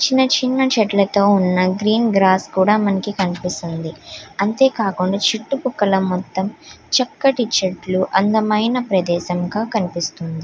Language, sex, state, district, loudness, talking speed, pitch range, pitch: Telugu, female, Andhra Pradesh, Guntur, -18 LUFS, 105 wpm, 185-220 Hz, 200 Hz